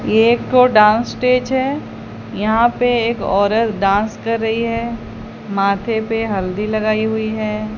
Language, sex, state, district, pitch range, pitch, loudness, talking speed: Hindi, female, Odisha, Sambalpur, 215-235 Hz, 220 Hz, -16 LUFS, 145 wpm